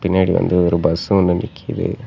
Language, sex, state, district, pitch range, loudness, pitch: Tamil, male, Tamil Nadu, Namakkal, 90-95 Hz, -17 LUFS, 90 Hz